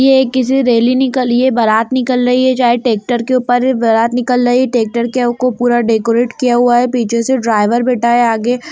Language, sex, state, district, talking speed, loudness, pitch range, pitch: Hindi, female, Bihar, Lakhisarai, 215 wpm, -13 LUFS, 235-255 Hz, 245 Hz